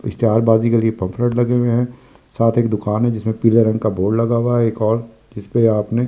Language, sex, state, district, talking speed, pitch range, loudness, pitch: Hindi, male, Delhi, New Delhi, 245 wpm, 110-120 Hz, -17 LUFS, 115 Hz